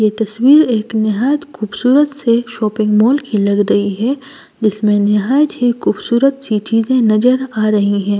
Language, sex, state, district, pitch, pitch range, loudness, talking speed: Hindi, female, Delhi, New Delhi, 225 Hz, 210-265 Hz, -14 LUFS, 160 wpm